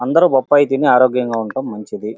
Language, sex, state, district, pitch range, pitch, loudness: Telugu, male, Andhra Pradesh, Guntur, 115-140 Hz, 130 Hz, -15 LUFS